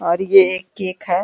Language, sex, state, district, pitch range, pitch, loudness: Hindi, female, Uttar Pradesh, Deoria, 180-190 Hz, 185 Hz, -15 LUFS